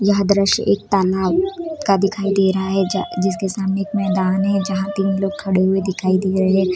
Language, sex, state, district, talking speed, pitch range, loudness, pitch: Hindi, female, Bihar, East Champaran, 215 wpm, 190-200 Hz, -18 LUFS, 195 Hz